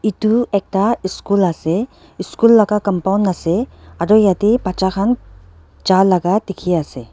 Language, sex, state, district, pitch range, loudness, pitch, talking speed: Nagamese, female, Nagaland, Dimapur, 180-215 Hz, -16 LUFS, 195 Hz, 120 wpm